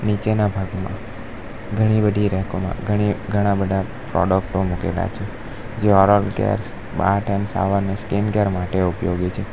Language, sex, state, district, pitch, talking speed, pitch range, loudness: Gujarati, male, Gujarat, Valsad, 100 Hz, 150 wpm, 95-105 Hz, -21 LUFS